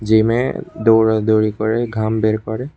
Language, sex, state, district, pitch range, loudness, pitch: Bengali, male, Tripura, West Tripura, 110-115 Hz, -17 LUFS, 110 Hz